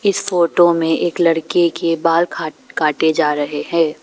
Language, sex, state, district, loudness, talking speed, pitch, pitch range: Hindi, female, Arunachal Pradesh, Papum Pare, -16 LUFS, 180 wpm, 165 Hz, 160-175 Hz